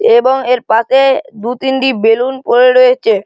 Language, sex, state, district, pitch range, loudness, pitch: Bengali, male, West Bengal, Malda, 235-265 Hz, -11 LUFS, 255 Hz